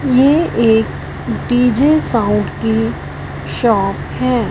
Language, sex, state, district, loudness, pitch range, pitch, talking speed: Hindi, female, Punjab, Fazilka, -15 LUFS, 220-255 Hz, 235 Hz, 95 wpm